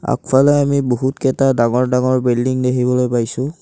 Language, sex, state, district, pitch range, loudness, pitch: Assamese, male, Assam, Kamrup Metropolitan, 125-135 Hz, -16 LUFS, 130 Hz